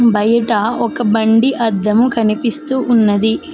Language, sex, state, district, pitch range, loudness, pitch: Telugu, female, Telangana, Mahabubabad, 220-240 Hz, -14 LUFS, 230 Hz